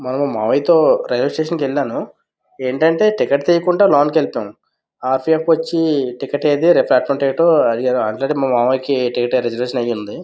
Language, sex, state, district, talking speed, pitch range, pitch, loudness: Telugu, male, Andhra Pradesh, Visakhapatnam, 165 wpm, 130-160 Hz, 140 Hz, -16 LUFS